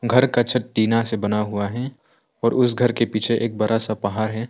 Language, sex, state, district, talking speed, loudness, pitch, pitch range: Hindi, male, Arunachal Pradesh, Longding, 240 wpm, -21 LUFS, 115 Hz, 110-120 Hz